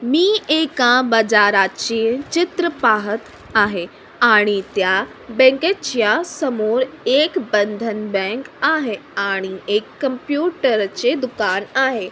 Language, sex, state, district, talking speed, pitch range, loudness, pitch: Marathi, female, Maharashtra, Sindhudurg, 95 wpm, 210-290 Hz, -18 LUFS, 235 Hz